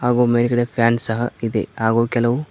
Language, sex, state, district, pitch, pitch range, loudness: Kannada, male, Karnataka, Koppal, 120 Hz, 115-120 Hz, -19 LUFS